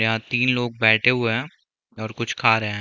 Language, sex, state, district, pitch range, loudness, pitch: Hindi, male, Chhattisgarh, Bilaspur, 110-125 Hz, -20 LUFS, 115 Hz